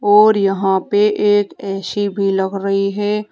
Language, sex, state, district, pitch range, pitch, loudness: Hindi, female, Uttar Pradesh, Saharanpur, 195-205 Hz, 200 Hz, -16 LUFS